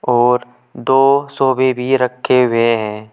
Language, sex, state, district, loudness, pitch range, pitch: Hindi, male, Uttar Pradesh, Saharanpur, -14 LUFS, 120-130 Hz, 125 Hz